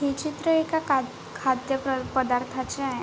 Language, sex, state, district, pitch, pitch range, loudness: Marathi, female, Maharashtra, Chandrapur, 270 Hz, 260-290 Hz, -26 LUFS